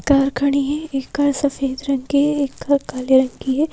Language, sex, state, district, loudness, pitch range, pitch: Hindi, female, Madhya Pradesh, Bhopal, -19 LUFS, 270-285 Hz, 280 Hz